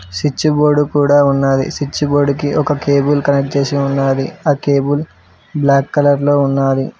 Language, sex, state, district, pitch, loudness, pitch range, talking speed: Telugu, male, Telangana, Mahabubabad, 140 Hz, -14 LUFS, 140-145 Hz, 155 wpm